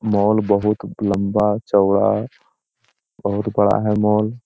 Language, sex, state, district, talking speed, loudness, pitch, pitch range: Hindi, male, Bihar, Jamui, 105 wpm, -18 LUFS, 105 Hz, 100-105 Hz